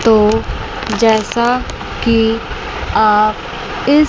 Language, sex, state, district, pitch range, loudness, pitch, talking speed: Hindi, female, Chandigarh, Chandigarh, 215-235 Hz, -15 LUFS, 225 Hz, 75 wpm